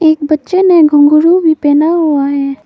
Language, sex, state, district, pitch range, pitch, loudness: Hindi, female, Arunachal Pradesh, Papum Pare, 290-330 Hz, 310 Hz, -9 LUFS